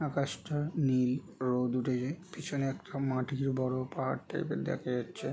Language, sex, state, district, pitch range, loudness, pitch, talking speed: Bengali, male, West Bengal, Jhargram, 130-145 Hz, -34 LUFS, 135 Hz, 155 wpm